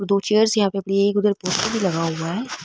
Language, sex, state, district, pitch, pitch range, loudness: Marwari, female, Rajasthan, Nagaur, 200 Hz, 190-215 Hz, -20 LUFS